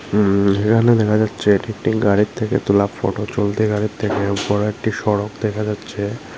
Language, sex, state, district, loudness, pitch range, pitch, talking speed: Bengali, male, Tripura, Unakoti, -18 LUFS, 100-110 Hz, 105 Hz, 160 wpm